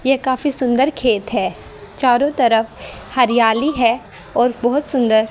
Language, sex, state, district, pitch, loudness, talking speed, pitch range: Hindi, female, Haryana, Jhajjar, 245 Hz, -17 LUFS, 135 wpm, 230-265 Hz